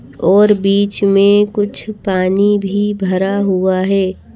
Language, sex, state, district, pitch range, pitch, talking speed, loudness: Hindi, female, Madhya Pradesh, Bhopal, 190-205 Hz, 195 Hz, 125 wpm, -14 LUFS